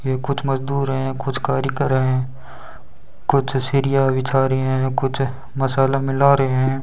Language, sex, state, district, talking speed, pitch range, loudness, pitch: Hindi, male, Rajasthan, Bikaner, 165 wpm, 130-135 Hz, -20 LUFS, 135 Hz